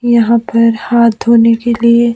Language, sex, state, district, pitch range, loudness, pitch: Hindi, male, Himachal Pradesh, Shimla, 230-235 Hz, -10 LUFS, 235 Hz